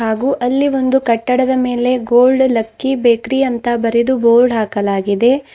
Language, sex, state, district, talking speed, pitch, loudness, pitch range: Kannada, female, Karnataka, Bidar, 130 wpm, 245 Hz, -14 LUFS, 230-260 Hz